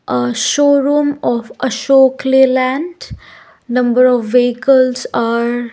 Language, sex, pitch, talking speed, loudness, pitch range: English, female, 255 Hz, 105 wpm, -13 LUFS, 240-265 Hz